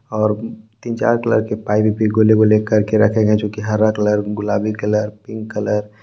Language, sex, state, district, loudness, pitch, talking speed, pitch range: Hindi, male, Jharkhand, Palamu, -17 LUFS, 110 Hz, 230 wpm, 105-110 Hz